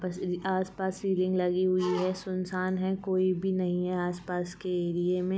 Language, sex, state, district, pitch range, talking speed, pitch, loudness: Hindi, female, Uttar Pradesh, Varanasi, 180-185 Hz, 165 wpm, 185 Hz, -30 LUFS